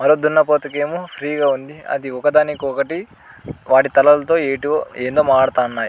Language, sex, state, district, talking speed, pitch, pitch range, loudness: Telugu, male, Andhra Pradesh, Anantapur, 155 wpm, 145 Hz, 135-150 Hz, -17 LUFS